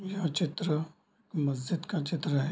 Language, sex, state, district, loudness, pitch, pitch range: Hindi, male, Bihar, Darbhanga, -32 LUFS, 165 Hz, 150-180 Hz